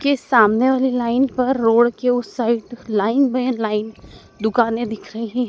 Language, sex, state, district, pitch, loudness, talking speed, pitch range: Hindi, female, Madhya Pradesh, Dhar, 235 Hz, -18 LUFS, 140 wpm, 225-255 Hz